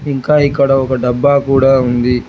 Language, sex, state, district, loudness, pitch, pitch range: Telugu, male, Telangana, Hyderabad, -12 LUFS, 135 Hz, 125-140 Hz